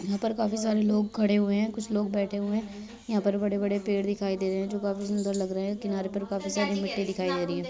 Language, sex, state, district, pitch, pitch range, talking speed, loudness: Hindi, female, Uttar Pradesh, Ghazipur, 200 Hz, 195-210 Hz, 280 wpm, -28 LUFS